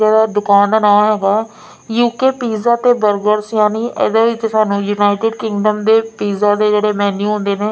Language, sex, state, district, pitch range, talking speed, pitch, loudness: Punjabi, female, Punjab, Fazilka, 205-225 Hz, 180 wpm, 215 Hz, -14 LUFS